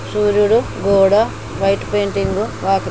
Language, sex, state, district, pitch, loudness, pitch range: Telugu, female, Andhra Pradesh, Guntur, 200 Hz, -16 LUFS, 195-210 Hz